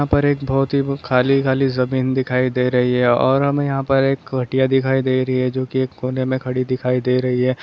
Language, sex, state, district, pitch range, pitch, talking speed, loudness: Hindi, male, Bihar, Darbhanga, 125-135 Hz, 130 Hz, 250 wpm, -18 LUFS